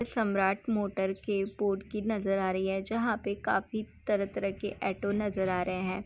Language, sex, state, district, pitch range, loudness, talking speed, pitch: Hindi, female, Bihar, Saharsa, 190-210 Hz, -31 LUFS, 190 wpm, 200 Hz